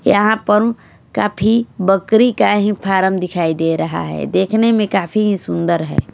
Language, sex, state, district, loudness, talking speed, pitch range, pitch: Hindi, female, Maharashtra, Washim, -16 LUFS, 165 wpm, 170-215 Hz, 195 Hz